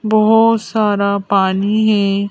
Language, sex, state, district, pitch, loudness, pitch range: Hindi, female, Madhya Pradesh, Bhopal, 210 Hz, -14 LUFS, 200-220 Hz